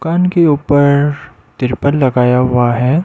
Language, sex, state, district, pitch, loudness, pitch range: Hindi, male, Arunachal Pradesh, Lower Dibang Valley, 140 Hz, -12 LUFS, 125-150 Hz